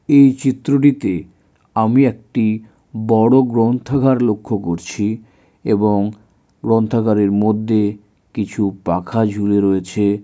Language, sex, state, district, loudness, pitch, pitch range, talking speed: Bengali, male, West Bengal, Malda, -17 LUFS, 110 Hz, 105-120 Hz, 90 wpm